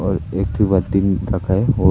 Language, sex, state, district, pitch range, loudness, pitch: Hindi, male, Arunachal Pradesh, Papum Pare, 95-100 Hz, -18 LUFS, 95 Hz